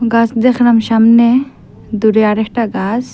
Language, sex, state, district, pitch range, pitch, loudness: Bengali, female, Assam, Hailakandi, 220-240 Hz, 230 Hz, -12 LUFS